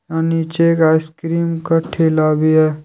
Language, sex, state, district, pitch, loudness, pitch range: Hindi, male, Jharkhand, Deoghar, 160 Hz, -16 LUFS, 155-165 Hz